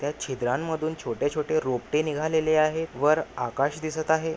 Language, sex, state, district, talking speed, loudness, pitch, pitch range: Marathi, male, Maharashtra, Nagpur, 150 wpm, -26 LUFS, 155 Hz, 145-160 Hz